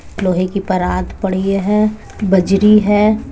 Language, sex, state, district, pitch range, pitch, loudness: Hindi, female, Uttar Pradesh, Budaun, 185-210 Hz, 195 Hz, -15 LUFS